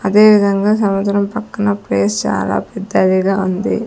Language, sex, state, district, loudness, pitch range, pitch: Telugu, female, Andhra Pradesh, Sri Satya Sai, -15 LUFS, 185-205 Hz, 200 Hz